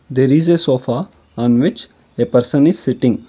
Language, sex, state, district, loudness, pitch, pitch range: English, male, Karnataka, Bangalore, -15 LUFS, 130 Hz, 120-145 Hz